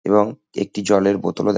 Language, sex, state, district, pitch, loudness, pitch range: Bengali, male, West Bengal, Kolkata, 100 Hz, -19 LUFS, 100-105 Hz